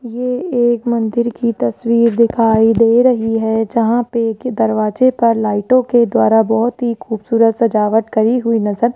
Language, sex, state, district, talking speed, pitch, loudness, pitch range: Hindi, female, Rajasthan, Jaipur, 165 wpm, 230 Hz, -14 LUFS, 225-240 Hz